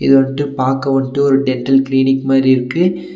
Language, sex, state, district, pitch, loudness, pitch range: Tamil, male, Tamil Nadu, Nilgiris, 135 Hz, -14 LUFS, 135-140 Hz